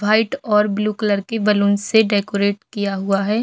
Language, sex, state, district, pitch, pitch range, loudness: Hindi, female, Chhattisgarh, Bilaspur, 210 Hz, 200-215 Hz, -18 LUFS